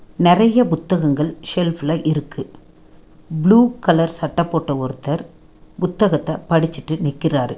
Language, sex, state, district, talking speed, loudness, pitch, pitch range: Tamil, female, Tamil Nadu, Nilgiris, 105 wpm, -18 LUFS, 160 Hz, 150-175 Hz